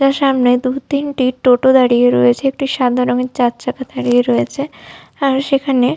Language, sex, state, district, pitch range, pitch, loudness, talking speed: Bengali, female, Jharkhand, Sahebganj, 245-275 Hz, 255 Hz, -15 LUFS, 150 wpm